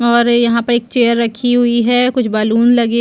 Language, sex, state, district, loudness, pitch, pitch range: Hindi, female, Chhattisgarh, Bastar, -13 LUFS, 235 Hz, 235-245 Hz